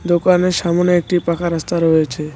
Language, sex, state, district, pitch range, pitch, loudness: Bengali, male, West Bengal, Cooch Behar, 165-180 Hz, 175 Hz, -16 LUFS